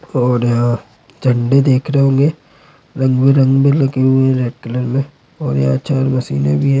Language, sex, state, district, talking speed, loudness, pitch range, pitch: Hindi, male, Bihar, Supaul, 140 wpm, -15 LUFS, 125-135 Hz, 130 Hz